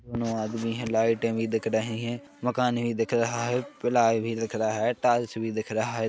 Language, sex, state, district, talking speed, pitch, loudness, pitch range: Hindi, male, Chhattisgarh, Rajnandgaon, 225 wpm, 115 Hz, -27 LUFS, 110-120 Hz